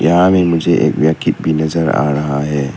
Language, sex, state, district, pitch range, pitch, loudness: Hindi, male, Arunachal Pradesh, Papum Pare, 75-85 Hz, 80 Hz, -14 LUFS